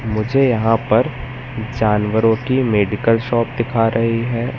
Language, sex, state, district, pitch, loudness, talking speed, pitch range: Hindi, male, Madhya Pradesh, Katni, 115 Hz, -17 LUFS, 130 wpm, 110-125 Hz